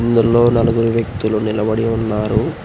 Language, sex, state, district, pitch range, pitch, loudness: Telugu, male, Telangana, Hyderabad, 110-115 Hz, 115 Hz, -16 LUFS